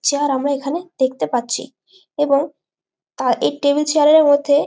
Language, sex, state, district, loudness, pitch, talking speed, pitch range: Bengali, female, West Bengal, Malda, -17 LUFS, 285 Hz, 165 wpm, 280-300 Hz